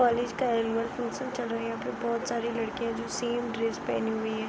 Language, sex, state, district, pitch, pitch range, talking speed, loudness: Hindi, female, Bihar, Gopalganj, 235 Hz, 230-240 Hz, 265 wpm, -30 LUFS